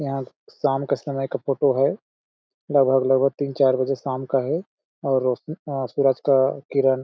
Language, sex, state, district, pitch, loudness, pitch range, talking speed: Hindi, male, Chhattisgarh, Balrampur, 135 Hz, -22 LUFS, 130-140 Hz, 170 wpm